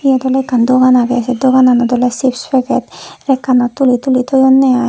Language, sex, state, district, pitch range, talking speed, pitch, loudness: Chakma, female, Tripura, West Tripura, 250-265 Hz, 185 wpm, 255 Hz, -12 LUFS